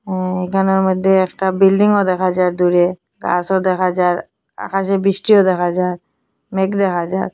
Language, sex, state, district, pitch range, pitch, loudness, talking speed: Bengali, female, Assam, Hailakandi, 180-195 Hz, 185 Hz, -16 LUFS, 155 wpm